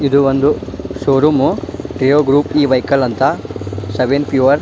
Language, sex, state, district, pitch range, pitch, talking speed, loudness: Kannada, male, Karnataka, Dharwad, 130-145 Hz, 135 Hz, 65 wpm, -14 LUFS